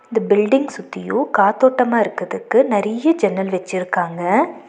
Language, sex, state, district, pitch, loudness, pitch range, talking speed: Tamil, female, Tamil Nadu, Nilgiris, 210 Hz, -17 LUFS, 190-250 Hz, 100 wpm